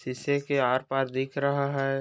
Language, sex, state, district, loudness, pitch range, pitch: Hindi, male, Chhattisgarh, Bastar, -27 LUFS, 130-140 Hz, 135 Hz